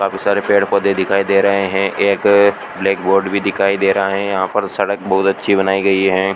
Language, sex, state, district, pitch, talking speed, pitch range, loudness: Hindi, male, Rajasthan, Bikaner, 100 Hz, 225 wpm, 95-100 Hz, -15 LUFS